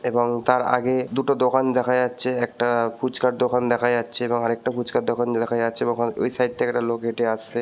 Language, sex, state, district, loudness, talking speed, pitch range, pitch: Bengali, male, West Bengal, Purulia, -22 LUFS, 220 wpm, 120-125 Hz, 120 Hz